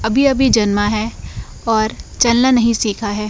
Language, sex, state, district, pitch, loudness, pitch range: Hindi, female, Uttarakhand, Tehri Garhwal, 220 Hz, -16 LUFS, 210-240 Hz